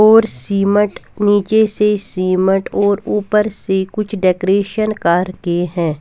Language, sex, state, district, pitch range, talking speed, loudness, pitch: Hindi, female, Punjab, Kapurthala, 185-210 Hz, 130 wpm, -16 LUFS, 200 Hz